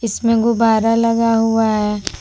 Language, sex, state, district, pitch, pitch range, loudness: Hindi, female, Jharkhand, Palamu, 225 Hz, 220-230 Hz, -15 LUFS